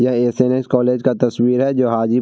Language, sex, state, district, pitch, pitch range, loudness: Hindi, male, Bihar, Vaishali, 125 Hz, 120-125 Hz, -16 LUFS